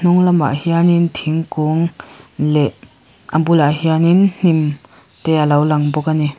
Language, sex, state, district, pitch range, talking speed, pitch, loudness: Mizo, female, Mizoram, Aizawl, 150-170 Hz, 150 wpm, 155 Hz, -15 LUFS